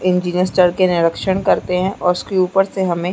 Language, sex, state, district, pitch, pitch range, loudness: Hindi, female, Chhattisgarh, Bastar, 180 Hz, 180-190 Hz, -17 LUFS